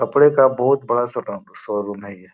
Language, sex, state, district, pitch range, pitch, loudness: Hindi, male, Bihar, Gopalganj, 100-135 Hz, 120 Hz, -18 LUFS